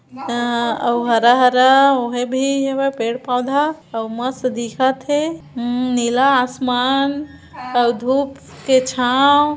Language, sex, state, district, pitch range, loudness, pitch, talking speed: Hindi, female, Chhattisgarh, Bilaspur, 240-275 Hz, -17 LUFS, 255 Hz, 115 wpm